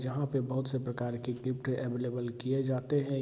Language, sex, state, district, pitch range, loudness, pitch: Hindi, male, Bihar, Saharsa, 125-135 Hz, -34 LUFS, 130 Hz